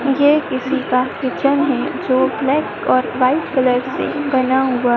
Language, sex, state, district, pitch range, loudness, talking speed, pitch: Hindi, female, Madhya Pradesh, Dhar, 255-280 Hz, -17 LUFS, 155 wpm, 265 Hz